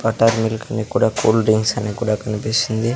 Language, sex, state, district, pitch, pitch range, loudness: Telugu, male, Andhra Pradesh, Sri Satya Sai, 110 Hz, 110-115 Hz, -18 LUFS